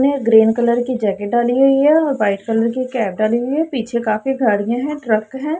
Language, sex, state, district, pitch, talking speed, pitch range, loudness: Hindi, female, Punjab, Pathankot, 240 Hz, 225 wpm, 220-270 Hz, -16 LUFS